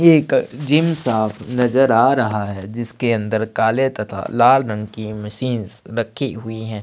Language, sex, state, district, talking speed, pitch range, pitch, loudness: Hindi, male, Chhattisgarh, Sukma, 165 wpm, 110-130 Hz, 115 Hz, -19 LUFS